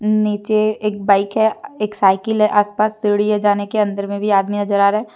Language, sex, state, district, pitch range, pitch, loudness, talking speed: Hindi, female, Jharkhand, Deoghar, 205-215 Hz, 210 Hz, -17 LUFS, 245 wpm